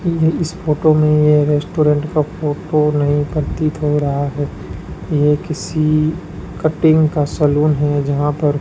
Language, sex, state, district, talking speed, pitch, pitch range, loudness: Hindi, male, Rajasthan, Bikaner, 155 wpm, 150 Hz, 145-155 Hz, -16 LUFS